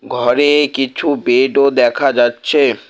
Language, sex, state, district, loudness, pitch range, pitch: Bengali, male, West Bengal, Alipurduar, -13 LUFS, 125-145 Hz, 135 Hz